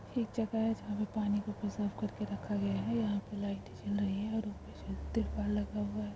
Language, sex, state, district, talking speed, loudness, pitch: Hindi, female, Bihar, Jamui, 235 wpm, -36 LUFS, 200 Hz